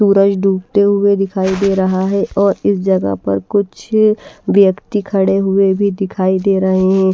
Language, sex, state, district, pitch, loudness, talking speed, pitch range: Hindi, female, Maharashtra, Washim, 195 Hz, -14 LUFS, 170 wpm, 190-200 Hz